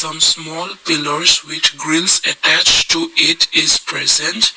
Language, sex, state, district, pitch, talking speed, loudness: English, male, Assam, Kamrup Metropolitan, 170 Hz, 130 wpm, -12 LUFS